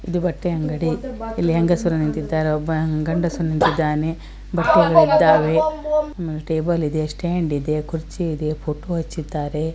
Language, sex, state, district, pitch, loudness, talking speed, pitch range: Kannada, female, Karnataka, Belgaum, 160 Hz, -20 LUFS, 125 wpm, 155-170 Hz